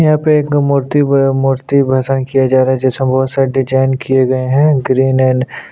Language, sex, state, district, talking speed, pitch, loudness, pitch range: Hindi, male, Chhattisgarh, Sukma, 210 wpm, 135 Hz, -13 LUFS, 130-140 Hz